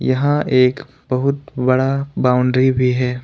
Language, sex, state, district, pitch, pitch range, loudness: Hindi, male, Jharkhand, Ranchi, 130 Hz, 125-140 Hz, -17 LUFS